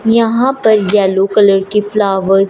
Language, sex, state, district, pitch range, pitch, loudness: Hindi, female, Punjab, Fazilka, 195-225 Hz, 205 Hz, -12 LUFS